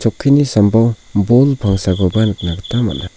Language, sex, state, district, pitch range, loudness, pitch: Garo, male, Meghalaya, South Garo Hills, 100-120 Hz, -14 LUFS, 110 Hz